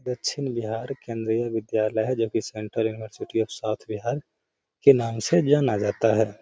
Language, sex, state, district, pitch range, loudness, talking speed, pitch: Hindi, male, Bihar, Gaya, 110-125 Hz, -25 LUFS, 195 wpm, 115 Hz